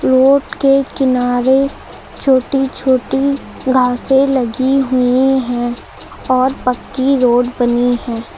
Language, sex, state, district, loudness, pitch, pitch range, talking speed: Hindi, female, Uttar Pradesh, Lucknow, -14 LUFS, 260 Hz, 245-270 Hz, 100 wpm